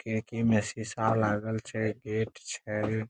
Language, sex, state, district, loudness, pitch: Maithili, male, Bihar, Saharsa, -30 LUFS, 110 Hz